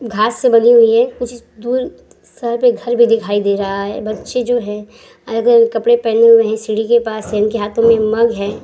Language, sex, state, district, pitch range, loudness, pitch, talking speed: Hindi, female, Uttar Pradesh, Hamirpur, 215-235 Hz, -14 LUFS, 230 Hz, 215 wpm